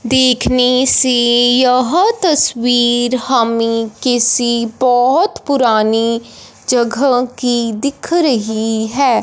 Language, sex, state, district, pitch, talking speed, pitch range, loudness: Hindi, female, Punjab, Fazilka, 245 Hz, 85 wpm, 235-260 Hz, -13 LUFS